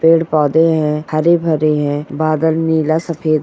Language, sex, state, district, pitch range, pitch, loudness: Hindi, male, Bihar, Purnia, 155-160 Hz, 155 Hz, -15 LUFS